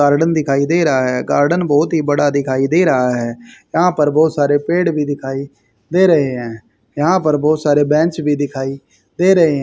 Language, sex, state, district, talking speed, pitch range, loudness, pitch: Hindi, male, Haryana, Charkhi Dadri, 205 wpm, 135-160 Hz, -15 LUFS, 145 Hz